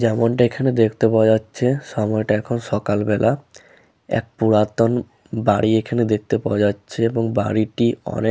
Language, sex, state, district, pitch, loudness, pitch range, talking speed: Bengali, male, West Bengal, Malda, 110 Hz, -19 LUFS, 105-115 Hz, 135 wpm